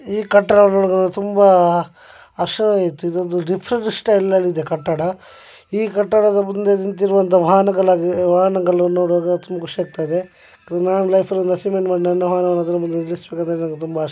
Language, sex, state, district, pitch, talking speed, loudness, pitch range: Kannada, male, Karnataka, Dakshina Kannada, 180 Hz, 85 wpm, -17 LUFS, 175-195 Hz